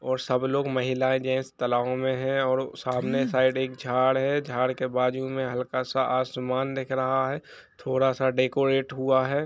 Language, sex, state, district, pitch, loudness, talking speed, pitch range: Hindi, male, Jharkhand, Jamtara, 130 Hz, -26 LUFS, 185 wpm, 130-135 Hz